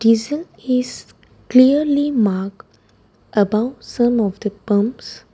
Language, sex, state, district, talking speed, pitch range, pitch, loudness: English, female, Gujarat, Valsad, 100 wpm, 200-255 Hz, 225 Hz, -18 LUFS